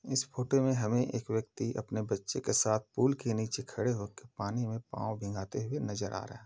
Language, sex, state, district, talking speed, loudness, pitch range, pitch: Hindi, male, Uttar Pradesh, Jalaun, 215 wpm, -33 LUFS, 110-130 Hz, 115 Hz